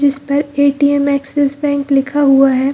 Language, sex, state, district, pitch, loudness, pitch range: Hindi, female, Bihar, Gaya, 280 Hz, -14 LUFS, 275-285 Hz